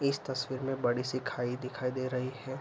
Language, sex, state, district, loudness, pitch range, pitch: Hindi, male, Bihar, Araria, -34 LUFS, 125-130 Hz, 130 Hz